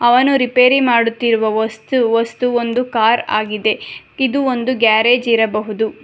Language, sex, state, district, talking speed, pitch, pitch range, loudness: Kannada, female, Karnataka, Bangalore, 120 wpm, 235 Hz, 220-250 Hz, -15 LUFS